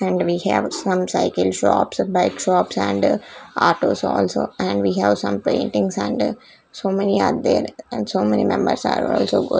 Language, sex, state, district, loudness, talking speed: English, female, Chandigarh, Chandigarh, -20 LUFS, 180 wpm